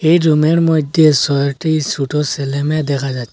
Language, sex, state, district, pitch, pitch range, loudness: Bengali, male, Assam, Hailakandi, 150 Hz, 140-155 Hz, -15 LUFS